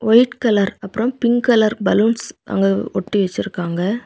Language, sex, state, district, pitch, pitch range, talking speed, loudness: Tamil, female, Tamil Nadu, Kanyakumari, 215 Hz, 195-235 Hz, 135 wpm, -18 LUFS